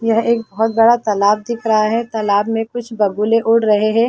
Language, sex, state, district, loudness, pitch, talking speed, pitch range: Hindi, female, Chhattisgarh, Balrampur, -16 LUFS, 225 Hz, 235 wpm, 215-230 Hz